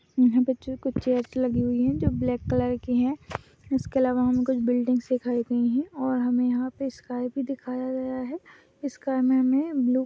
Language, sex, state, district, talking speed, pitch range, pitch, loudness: Hindi, female, Chhattisgarh, Jashpur, 205 wpm, 245-265 Hz, 255 Hz, -26 LUFS